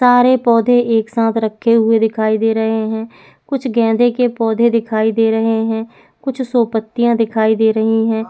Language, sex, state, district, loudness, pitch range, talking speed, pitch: Hindi, female, Uttar Pradesh, Etah, -15 LUFS, 220-235 Hz, 180 wpm, 225 Hz